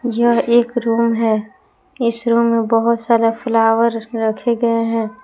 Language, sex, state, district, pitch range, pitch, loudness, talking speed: Hindi, female, Jharkhand, Palamu, 225-235 Hz, 230 Hz, -16 LUFS, 150 wpm